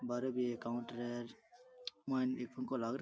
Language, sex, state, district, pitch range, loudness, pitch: Rajasthani, male, Rajasthan, Churu, 120-135 Hz, -41 LUFS, 125 Hz